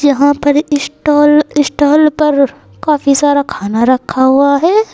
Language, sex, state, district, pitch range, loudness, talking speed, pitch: Hindi, female, Uttar Pradesh, Saharanpur, 280-300 Hz, -11 LUFS, 135 wpm, 290 Hz